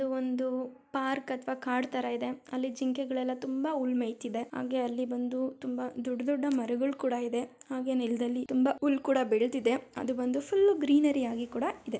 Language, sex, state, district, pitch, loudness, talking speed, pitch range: Kannada, female, Karnataka, Mysore, 255 Hz, -31 LUFS, 170 wpm, 250-270 Hz